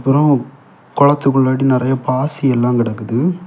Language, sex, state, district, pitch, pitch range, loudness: Tamil, male, Tamil Nadu, Kanyakumari, 135 Hz, 125-140 Hz, -15 LUFS